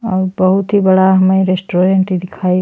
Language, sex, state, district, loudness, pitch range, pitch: Bhojpuri, female, Uttar Pradesh, Ghazipur, -13 LUFS, 185-190 Hz, 185 Hz